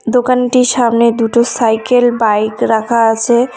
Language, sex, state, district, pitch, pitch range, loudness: Bengali, female, West Bengal, Cooch Behar, 235 Hz, 225-245 Hz, -12 LUFS